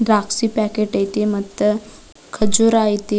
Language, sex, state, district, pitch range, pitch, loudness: Kannada, female, Karnataka, Dharwad, 210-220 Hz, 215 Hz, -18 LUFS